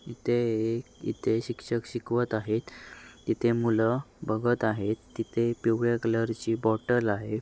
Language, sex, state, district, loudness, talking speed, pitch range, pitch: Marathi, male, Maharashtra, Sindhudurg, -28 LUFS, 130 wpm, 110-120 Hz, 115 Hz